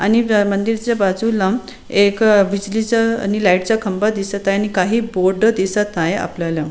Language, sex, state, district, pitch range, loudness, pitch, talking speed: Marathi, female, Maharashtra, Chandrapur, 195-220 Hz, -17 LUFS, 200 Hz, 170 wpm